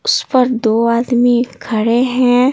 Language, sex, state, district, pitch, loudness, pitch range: Hindi, female, Bihar, Patna, 245 Hz, -14 LUFS, 235-255 Hz